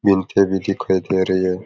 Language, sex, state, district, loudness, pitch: Rajasthani, male, Rajasthan, Nagaur, -18 LUFS, 95 Hz